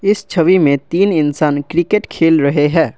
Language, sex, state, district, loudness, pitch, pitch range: Hindi, male, Assam, Kamrup Metropolitan, -14 LUFS, 165 Hz, 145-185 Hz